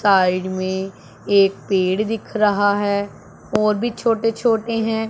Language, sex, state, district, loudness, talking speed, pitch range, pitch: Hindi, male, Punjab, Pathankot, -19 LUFS, 140 wpm, 190-225 Hz, 205 Hz